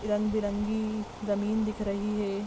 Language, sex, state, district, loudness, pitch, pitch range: Hindi, female, Uttar Pradesh, Deoria, -30 LUFS, 210 Hz, 205-215 Hz